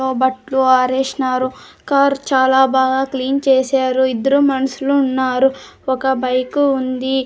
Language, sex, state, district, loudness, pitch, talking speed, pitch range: Telugu, female, Andhra Pradesh, Sri Satya Sai, -16 LUFS, 265 Hz, 105 wpm, 260-270 Hz